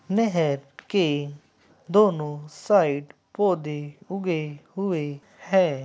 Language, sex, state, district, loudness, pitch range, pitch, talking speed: Hindi, male, Uttar Pradesh, Muzaffarnagar, -25 LUFS, 145-195 Hz, 160 Hz, 80 wpm